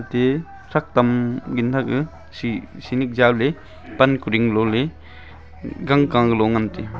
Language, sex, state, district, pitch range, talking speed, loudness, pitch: Wancho, male, Arunachal Pradesh, Longding, 110-130 Hz, 130 wpm, -20 LUFS, 120 Hz